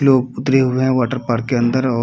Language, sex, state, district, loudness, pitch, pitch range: Hindi, male, Uttar Pradesh, Muzaffarnagar, -17 LUFS, 130 Hz, 120-130 Hz